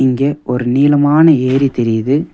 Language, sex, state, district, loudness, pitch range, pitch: Tamil, male, Tamil Nadu, Nilgiris, -12 LUFS, 125-145 Hz, 135 Hz